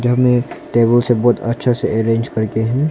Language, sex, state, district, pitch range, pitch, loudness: Hindi, male, Arunachal Pradesh, Longding, 115-125 Hz, 120 Hz, -16 LUFS